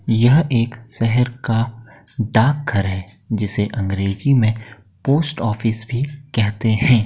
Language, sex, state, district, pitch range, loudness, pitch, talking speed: Hindi, male, Uttar Pradesh, Etah, 105-125 Hz, -19 LUFS, 115 Hz, 125 wpm